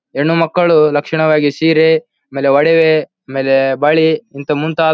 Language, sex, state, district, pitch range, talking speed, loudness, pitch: Kannada, male, Karnataka, Bellary, 140-160 Hz, 120 wpm, -13 LUFS, 155 Hz